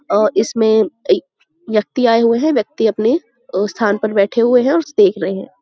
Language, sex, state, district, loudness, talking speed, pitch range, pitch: Hindi, female, Uttar Pradesh, Budaun, -15 LUFS, 215 wpm, 210-270 Hz, 230 Hz